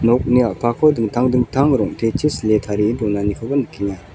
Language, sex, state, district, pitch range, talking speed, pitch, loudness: Garo, male, Meghalaya, South Garo Hills, 105-125 Hz, 130 wpm, 115 Hz, -18 LUFS